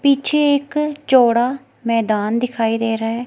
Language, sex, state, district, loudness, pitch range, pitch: Hindi, female, Himachal Pradesh, Shimla, -17 LUFS, 230-280 Hz, 245 Hz